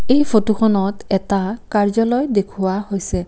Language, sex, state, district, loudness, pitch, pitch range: Assamese, female, Assam, Kamrup Metropolitan, -18 LUFS, 205 Hz, 195-225 Hz